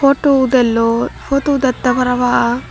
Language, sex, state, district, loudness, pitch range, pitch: Chakma, female, Tripura, Dhalai, -14 LUFS, 245-275 Hz, 255 Hz